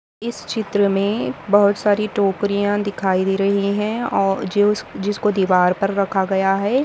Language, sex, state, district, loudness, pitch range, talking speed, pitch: Hindi, female, Maharashtra, Sindhudurg, -19 LUFS, 195-205 Hz, 160 wpm, 200 Hz